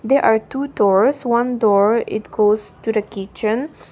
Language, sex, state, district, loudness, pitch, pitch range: English, female, Nagaland, Dimapur, -18 LUFS, 220 Hz, 210-245 Hz